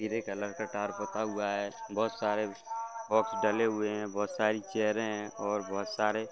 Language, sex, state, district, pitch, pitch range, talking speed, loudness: Hindi, male, Uttar Pradesh, Varanasi, 105 Hz, 105-110 Hz, 200 wpm, -33 LUFS